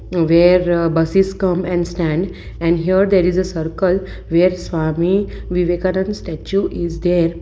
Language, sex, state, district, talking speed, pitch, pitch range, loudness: English, female, Gujarat, Valsad, 145 wpm, 180 Hz, 170-185 Hz, -17 LUFS